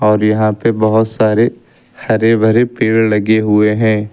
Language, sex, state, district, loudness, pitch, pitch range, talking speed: Hindi, male, Uttar Pradesh, Lucknow, -13 LUFS, 110 Hz, 105-110 Hz, 160 wpm